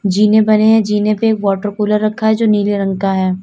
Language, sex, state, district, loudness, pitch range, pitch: Hindi, female, Uttar Pradesh, Lalitpur, -13 LUFS, 200-215 Hz, 210 Hz